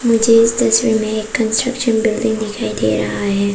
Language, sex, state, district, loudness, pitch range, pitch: Hindi, female, Arunachal Pradesh, Papum Pare, -15 LUFS, 200-230 Hz, 220 Hz